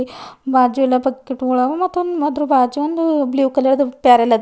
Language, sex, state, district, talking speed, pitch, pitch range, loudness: Kannada, female, Karnataka, Bidar, 175 wpm, 265 Hz, 255-295 Hz, -16 LUFS